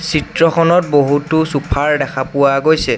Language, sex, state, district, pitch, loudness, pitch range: Assamese, male, Assam, Sonitpur, 150 Hz, -14 LUFS, 140-160 Hz